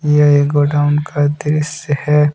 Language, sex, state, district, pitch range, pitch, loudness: Hindi, male, Jharkhand, Deoghar, 145-150 Hz, 145 Hz, -14 LUFS